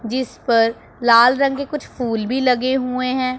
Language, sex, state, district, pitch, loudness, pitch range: Hindi, female, Punjab, Pathankot, 255 Hz, -18 LUFS, 235-260 Hz